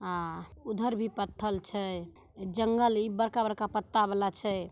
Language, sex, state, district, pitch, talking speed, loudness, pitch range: Maithili, female, Bihar, Samastipur, 210 Hz, 140 wpm, -31 LUFS, 190-225 Hz